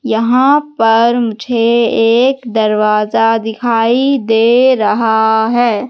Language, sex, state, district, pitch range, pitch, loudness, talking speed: Hindi, female, Madhya Pradesh, Katni, 225-245 Hz, 230 Hz, -12 LUFS, 90 wpm